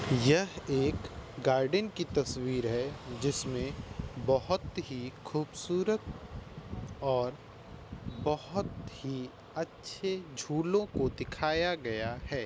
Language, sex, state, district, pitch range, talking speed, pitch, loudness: Hindi, male, Uttar Pradesh, Varanasi, 125-165 Hz, 95 wpm, 135 Hz, -33 LUFS